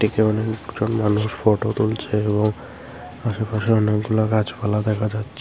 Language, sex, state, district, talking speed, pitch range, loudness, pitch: Bengali, female, Tripura, Unakoti, 110 wpm, 105-110 Hz, -21 LUFS, 110 Hz